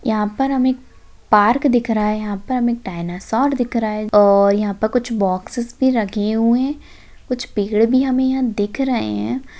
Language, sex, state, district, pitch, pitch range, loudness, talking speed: Hindi, female, Maharashtra, Solapur, 230 Hz, 205-255 Hz, -18 LUFS, 200 wpm